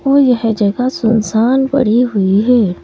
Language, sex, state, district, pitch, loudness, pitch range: Hindi, female, Madhya Pradesh, Bhopal, 235 Hz, -13 LUFS, 215-255 Hz